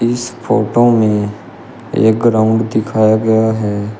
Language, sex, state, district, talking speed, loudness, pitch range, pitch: Hindi, male, Uttar Pradesh, Shamli, 120 wpm, -14 LUFS, 110-115 Hz, 110 Hz